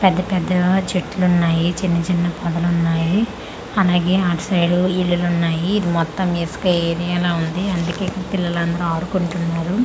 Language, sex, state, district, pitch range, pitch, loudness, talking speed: Telugu, female, Andhra Pradesh, Manyam, 170-185 Hz, 175 Hz, -19 LUFS, 115 wpm